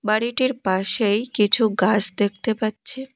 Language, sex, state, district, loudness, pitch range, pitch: Bengali, female, West Bengal, Cooch Behar, -20 LUFS, 205-240 Hz, 220 Hz